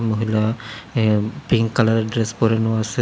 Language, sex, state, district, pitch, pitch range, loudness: Bengali, male, Tripura, West Tripura, 110 Hz, 110-115 Hz, -20 LUFS